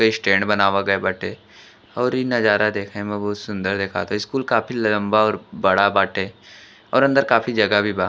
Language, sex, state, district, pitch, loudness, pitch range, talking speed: Bhojpuri, male, Uttar Pradesh, Gorakhpur, 105 Hz, -20 LUFS, 100-110 Hz, 185 wpm